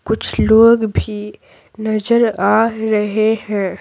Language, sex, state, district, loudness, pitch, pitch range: Hindi, female, Bihar, Patna, -15 LUFS, 220 Hz, 210-225 Hz